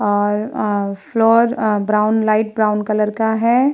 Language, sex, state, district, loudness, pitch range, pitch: Hindi, female, Uttar Pradesh, Muzaffarnagar, -17 LUFS, 210-225 Hz, 215 Hz